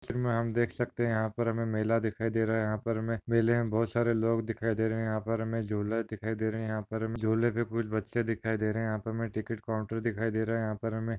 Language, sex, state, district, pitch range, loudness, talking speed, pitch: Hindi, male, Maharashtra, Nagpur, 110-115 Hz, -31 LUFS, 300 wpm, 115 Hz